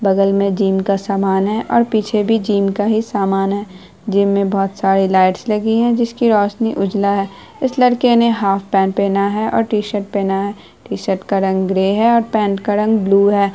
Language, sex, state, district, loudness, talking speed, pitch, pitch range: Hindi, female, Bihar, Araria, -16 LUFS, 210 wpm, 200 Hz, 195-220 Hz